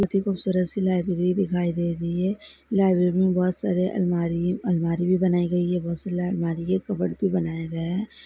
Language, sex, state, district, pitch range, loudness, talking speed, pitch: Hindi, female, Bihar, Sitamarhi, 175-190 Hz, -24 LUFS, 205 wpm, 180 Hz